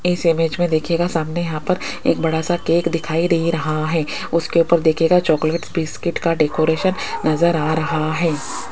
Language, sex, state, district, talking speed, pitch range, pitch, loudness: Hindi, female, Rajasthan, Jaipur, 180 wpm, 160-170 Hz, 165 Hz, -19 LUFS